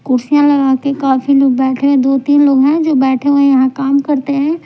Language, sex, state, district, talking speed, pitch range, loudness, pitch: Hindi, female, Punjab, Pathankot, 220 wpm, 265-285 Hz, -12 LUFS, 275 Hz